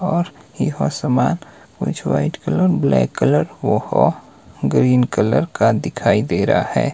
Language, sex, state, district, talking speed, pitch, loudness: Hindi, male, Himachal Pradesh, Shimla, 140 wpm, 105 Hz, -18 LUFS